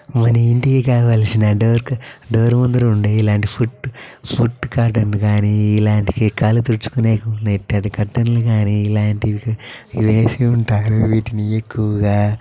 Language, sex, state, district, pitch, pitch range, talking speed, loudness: Telugu, male, Andhra Pradesh, Chittoor, 110 Hz, 105-120 Hz, 95 wpm, -16 LUFS